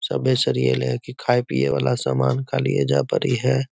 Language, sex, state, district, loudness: Magahi, male, Bihar, Gaya, -21 LUFS